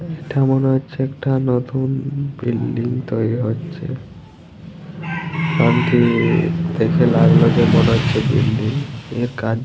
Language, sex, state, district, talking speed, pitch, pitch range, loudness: Bengali, male, Jharkhand, Jamtara, 130 wpm, 135 Hz, 120-160 Hz, -18 LUFS